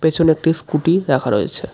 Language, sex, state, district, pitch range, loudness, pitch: Bengali, male, West Bengal, Darjeeling, 130-165 Hz, -17 LUFS, 160 Hz